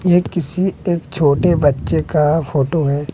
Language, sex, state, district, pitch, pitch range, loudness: Hindi, male, Bihar, West Champaran, 160 Hz, 145-175 Hz, -16 LUFS